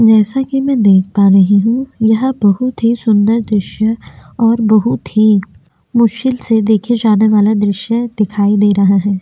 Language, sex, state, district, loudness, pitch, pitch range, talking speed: Hindi, female, Chhattisgarh, Korba, -12 LUFS, 220 Hz, 205-235 Hz, 165 wpm